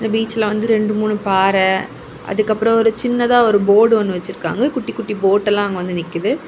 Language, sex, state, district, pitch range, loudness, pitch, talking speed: Tamil, female, Tamil Nadu, Kanyakumari, 195-225 Hz, -16 LUFS, 215 Hz, 185 wpm